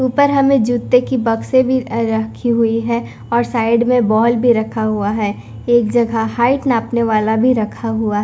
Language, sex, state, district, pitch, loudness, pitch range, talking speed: Hindi, female, Punjab, Kapurthala, 235 Hz, -15 LUFS, 220-245 Hz, 180 wpm